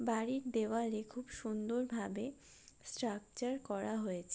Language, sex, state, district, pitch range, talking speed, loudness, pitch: Bengali, female, West Bengal, Jalpaiguri, 215-245 Hz, 110 wpm, -40 LUFS, 225 Hz